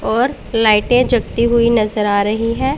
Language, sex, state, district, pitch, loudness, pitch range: Hindi, female, Punjab, Pathankot, 230 Hz, -15 LUFS, 215-240 Hz